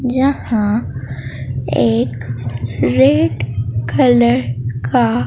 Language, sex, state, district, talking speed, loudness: Hindi, female, Bihar, Katihar, 55 wpm, -16 LUFS